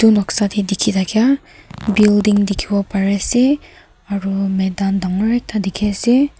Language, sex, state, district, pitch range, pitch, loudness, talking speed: Nagamese, female, Nagaland, Kohima, 195-220 Hz, 205 Hz, -17 LUFS, 130 wpm